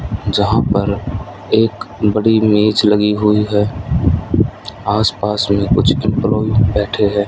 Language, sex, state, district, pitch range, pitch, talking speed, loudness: Hindi, male, Haryana, Rohtak, 100-110 Hz, 105 Hz, 125 wpm, -15 LUFS